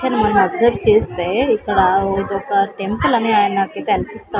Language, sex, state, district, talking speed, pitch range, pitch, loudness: Telugu, female, Andhra Pradesh, Sri Satya Sai, 135 wpm, 195-235 Hz, 200 Hz, -17 LUFS